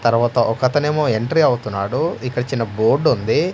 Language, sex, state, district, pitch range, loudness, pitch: Telugu, male, Andhra Pradesh, Manyam, 115-130 Hz, -18 LUFS, 120 Hz